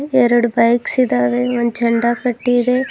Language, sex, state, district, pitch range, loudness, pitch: Kannada, female, Karnataka, Bidar, 235-245 Hz, -16 LUFS, 240 Hz